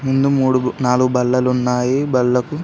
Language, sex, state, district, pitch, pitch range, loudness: Telugu, male, Telangana, Karimnagar, 125 Hz, 125-135 Hz, -16 LUFS